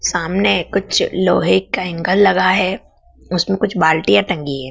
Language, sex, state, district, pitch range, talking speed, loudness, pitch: Hindi, female, Madhya Pradesh, Dhar, 165-195 Hz, 155 wpm, -16 LUFS, 185 Hz